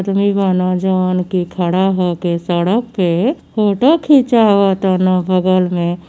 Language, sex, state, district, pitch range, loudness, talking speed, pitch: Bhojpuri, female, Uttar Pradesh, Gorakhpur, 180-200 Hz, -14 LUFS, 140 wpm, 185 Hz